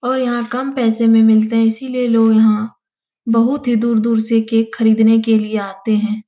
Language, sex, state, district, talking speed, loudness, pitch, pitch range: Hindi, female, Uttar Pradesh, Etah, 200 wpm, -15 LUFS, 225 Hz, 220-235 Hz